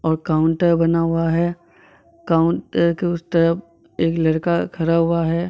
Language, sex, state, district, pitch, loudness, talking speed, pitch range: Hindi, male, Jharkhand, Sahebganj, 165 Hz, -19 LUFS, 155 wpm, 165-170 Hz